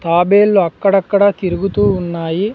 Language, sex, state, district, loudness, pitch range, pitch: Telugu, male, Andhra Pradesh, Sri Satya Sai, -14 LUFS, 175-200 Hz, 195 Hz